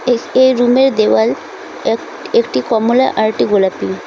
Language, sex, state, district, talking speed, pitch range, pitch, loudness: Bengali, female, West Bengal, Cooch Behar, 120 wpm, 215-260 Hz, 245 Hz, -13 LUFS